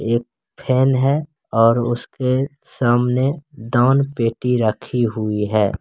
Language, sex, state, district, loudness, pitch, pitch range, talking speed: Angika, male, Bihar, Begusarai, -19 LUFS, 120 Hz, 115-135 Hz, 105 wpm